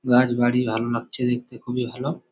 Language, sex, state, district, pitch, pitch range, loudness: Bengali, male, West Bengal, Malda, 125 Hz, 120-125 Hz, -24 LUFS